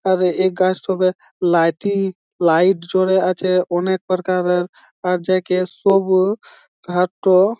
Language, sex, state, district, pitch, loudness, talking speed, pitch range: Bengali, male, West Bengal, Jalpaiguri, 185 Hz, -18 LUFS, 125 wpm, 180-190 Hz